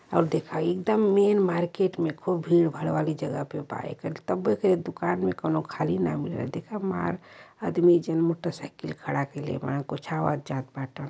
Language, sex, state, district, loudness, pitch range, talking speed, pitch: Bhojpuri, female, Uttar Pradesh, Varanasi, -27 LUFS, 140-175 Hz, 185 wpm, 165 Hz